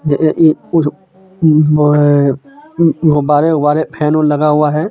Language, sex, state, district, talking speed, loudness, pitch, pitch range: Hindi, male, Jharkhand, Deoghar, 120 wpm, -12 LUFS, 155 Hz, 150-165 Hz